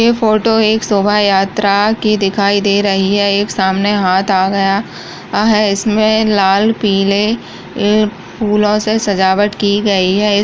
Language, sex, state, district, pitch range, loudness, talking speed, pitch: Kumaoni, female, Uttarakhand, Uttarkashi, 195-215 Hz, -13 LUFS, 145 wpm, 205 Hz